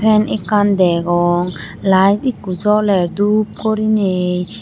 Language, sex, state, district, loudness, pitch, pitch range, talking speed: Chakma, female, Tripura, Unakoti, -15 LUFS, 200 Hz, 180-215 Hz, 105 wpm